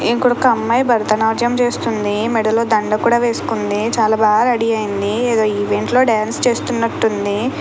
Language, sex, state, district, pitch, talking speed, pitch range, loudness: Telugu, female, Andhra Pradesh, Krishna, 225 Hz, 135 wpm, 215-240 Hz, -16 LUFS